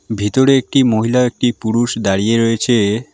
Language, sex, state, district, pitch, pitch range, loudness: Bengali, male, West Bengal, Alipurduar, 115 Hz, 110-125 Hz, -15 LUFS